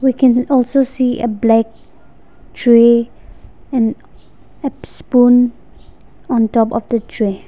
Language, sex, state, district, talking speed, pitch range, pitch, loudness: English, female, Nagaland, Dimapur, 110 wpm, 230-255 Hz, 240 Hz, -14 LUFS